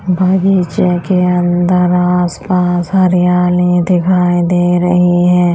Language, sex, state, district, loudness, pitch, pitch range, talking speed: Hindi, female, Bihar, Kaimur, -12 LUFS, 180 Hz, 175-180 Hz, 110 wpm